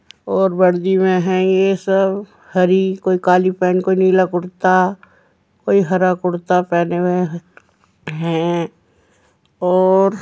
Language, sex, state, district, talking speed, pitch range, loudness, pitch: Hindi, female, Uttar Pradesh, Jyotiba Phule Nagar, 125 wpm, 180-190 Hz, -16 LUFS, 185 Hz